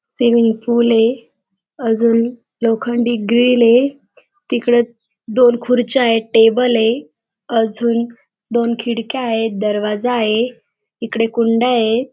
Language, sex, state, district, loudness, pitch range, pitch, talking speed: Marathi, female, Maharashtra, Dhule, -15 LUFS, 225-245 Hz, 235 Hz, 110 wpm